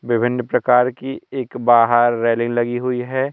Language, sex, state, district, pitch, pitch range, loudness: Hindi, male, Madhya Pradesh, Katni, 120 Hz, 120-125 Hz, -18 LUFS